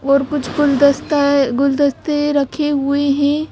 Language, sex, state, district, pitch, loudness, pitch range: Hindi, female, Madhya Pradesh, Bhopal, 285 Hz, -16 LUFS, 280-295 Hz